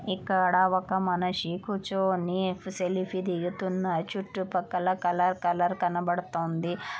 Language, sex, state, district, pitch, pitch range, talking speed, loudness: Telugu, female, Andhra Pradesh, Anantapur, 185 Hz, 175-190 Hz, 95 wpm, -28 LUFS